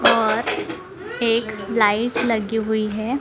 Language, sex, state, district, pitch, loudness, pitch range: Hindi, female, Maharashtra, Gondia, 225 Hz, -20 LUFS, 215-230 Hz